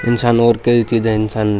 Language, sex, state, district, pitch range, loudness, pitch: Rajasthani, male, Rajasthan, Churu, 110-120 Hz, -15 LUFS, 115 Hz